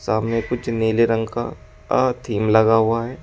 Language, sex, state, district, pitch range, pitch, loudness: Hindi, male, Uttar Pradesh, Shamli, 110-120 Hz, 115 Hz, -20 LUFS